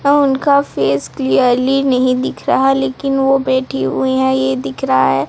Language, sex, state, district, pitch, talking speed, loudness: Hindi, female, Odisha, Sambalpur, 255 Hz, 180 wpm, -15 LUFS